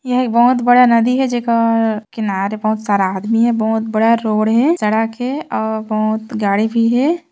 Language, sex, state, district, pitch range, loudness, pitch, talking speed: Chhattisgarhi, female, Chhattisgarh, Sarguja, 215-245 Hz, -15 LUFS, 225 Hz, 190 wpm